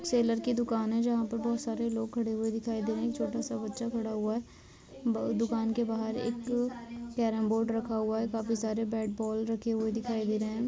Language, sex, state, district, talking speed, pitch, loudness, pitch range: Hindi, female, Bihar, Vaishali, 235 wpm, 225 Hz, -32 LUFS, 220-235 Hz